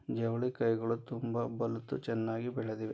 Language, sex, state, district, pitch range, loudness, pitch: Kannada, male, Karnataka, Dharwad, 115-120 Hz, -35 LUFS, 115 Hz